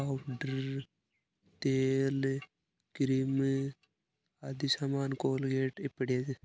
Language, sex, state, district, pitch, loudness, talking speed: Marwari, male, Rajasthan, Nagaur, 135 Hz, -33 LUFS, 75 wpm